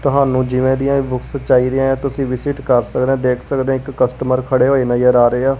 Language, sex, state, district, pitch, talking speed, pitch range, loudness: Punjabi, female, Punjab, Kapurthala, 130 Hz, 225 wpm, 125-135 Hz, -16 LUFS